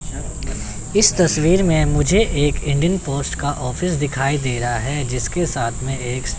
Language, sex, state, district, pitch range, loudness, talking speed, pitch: Hindi, male, Chandigarh, Chandigarh, 130-170 Hz, -19 LUFS, 160 wpm, 145 Hz